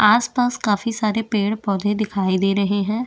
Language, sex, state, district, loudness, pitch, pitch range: Hindi, female, Chhattisgarh, Bastar, -20 LUFS, 210 Hz, 200-225 Hz